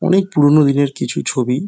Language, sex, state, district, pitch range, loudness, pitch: Bengali, male, West Bengal, Dakshin Dinajpur, 140-185 Hz, -15 LUFS, 145 Hz